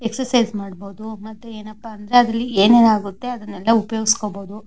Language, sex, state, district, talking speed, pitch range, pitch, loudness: Kannada, female, Karnataka, Mysore, 115 wpm, 210-230 Hz, 220 Hz, -18 LUFS